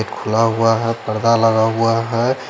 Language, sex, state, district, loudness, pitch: Hindi, male, Chandigarh, Chandigarh, -16 LUFS, 115 Hz